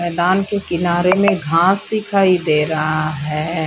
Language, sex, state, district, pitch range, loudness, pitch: Hindi, female, Bihar, West Champaran, 155-190 Hz, -16 LUFS, 175 Hz